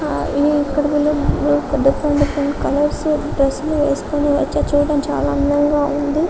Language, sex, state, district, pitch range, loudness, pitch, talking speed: Telugu, female, Telangana, Karimnagar, 285-295 Hz, -17 LUFS, 290 Hz, 125 wpm